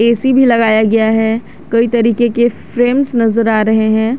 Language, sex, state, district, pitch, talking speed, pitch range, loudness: Hindi, female, Jharkhand, Garhwa, 230 Hz, 185 wpm, 220-240 Hz, -12 LUFS